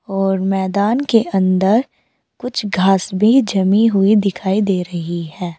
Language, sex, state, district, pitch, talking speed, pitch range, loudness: Hindi, female, Uttar Pradesh, Saharanpur, 195 Hz, 140 wpm, 190-215 Hz, -16 LUFS